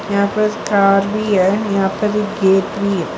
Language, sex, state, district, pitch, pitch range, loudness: Hindi, female, Gujarat, Valsad, 200 Hz, 195-210 Hz, -16 LUFS